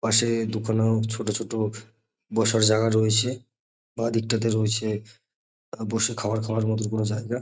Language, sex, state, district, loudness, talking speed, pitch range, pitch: Bengali, male, West Bengal, North 24 Parganas, -25 LUFS, 130 wpm, 110-115 Hz, 110 Hz